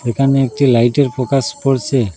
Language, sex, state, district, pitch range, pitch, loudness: Bengali, male, Assam, Hailakandi, 120-135 Hz, 135 Hz, -15 LUFS